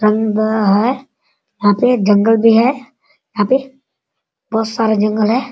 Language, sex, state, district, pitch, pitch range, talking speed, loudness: Hindi, male, Bihar, Sitamarhi, 225 Hz, 215-255 Hz, 130 wpm, -14 LUFS